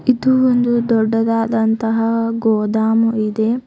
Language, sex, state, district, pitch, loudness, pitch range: Kannada, female, Karnataka, Bidar, 225 Hz, -16 LUFS, 220-235 Hz